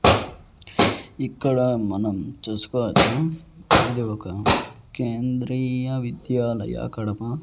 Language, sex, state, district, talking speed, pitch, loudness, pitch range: Telugu, male, Andhra Pradesh, Annamaya, 65 wpm, 120 Hz, -23 LUFS, 110-130 Hz